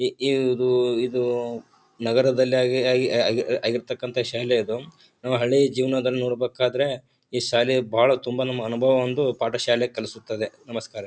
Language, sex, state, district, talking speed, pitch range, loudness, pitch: Kannada, male, Karnataka, Bijapur, 140 wpm, 125-130 Hz, -23 LUFS, 125 Hz